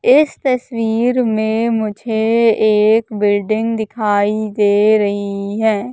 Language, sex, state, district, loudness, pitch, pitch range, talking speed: Hindi, female, Madhya Pradesh, Katni, -15 LUFS, 220 Hz, 210-230 Hz, 100 wpm